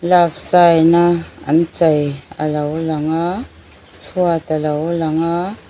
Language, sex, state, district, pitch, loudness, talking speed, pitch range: Mizo, female, Mizoram, Aizawl, 165 Hz, -16 LUFS, 125 wpm, 155-175 Hz